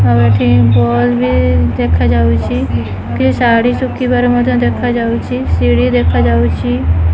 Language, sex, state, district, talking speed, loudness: Odia, female, Odisha, Khordha, 100 wpm, -12 LUFS